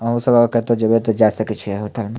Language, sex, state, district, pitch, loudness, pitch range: Maithili, male, Bihar, Samastipur, 115 Hz, -17 LUFS, 110-115 Hz